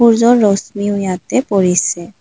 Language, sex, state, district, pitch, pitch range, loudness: Assamese, female, Assam, Kamrup Metropolitan, 200 Hz, 185-230 Hz, -14 LUFS